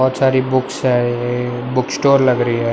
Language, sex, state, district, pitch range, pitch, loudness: Hindi, male, Maharashtra, Mumbai Suburban, 120-130 Hz, 125 Hz, -16 LUFS